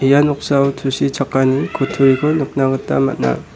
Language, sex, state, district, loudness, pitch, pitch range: Garo, male, Meghalaya, West Garo Hills, -16 LUFS, 135 Hz, 135-140 Hz